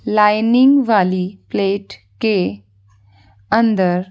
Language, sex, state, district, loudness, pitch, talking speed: Hindi, female, Jharkhand, Sahebganj, -16 LUFS, 185 Hz, 75 wpm